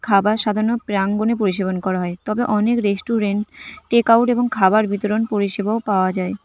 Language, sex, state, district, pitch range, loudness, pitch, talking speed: Bengali, female, West Bengal, Cooch Behar, 195-230 Hz, -19 LUFS, 210 Hz, 150 wpm